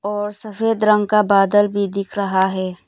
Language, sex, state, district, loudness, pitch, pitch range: Hindi, female, Arunachal Pradesh, Lower Dibang Valley, -18 LUFS, 205 Hz, 195-210 Hz